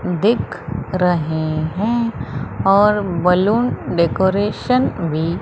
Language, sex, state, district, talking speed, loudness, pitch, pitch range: Hindi, female, Madhya Pradesh, Umaria, 80 wpm, -18 LUFS, 180 Hz, 165-210 Hz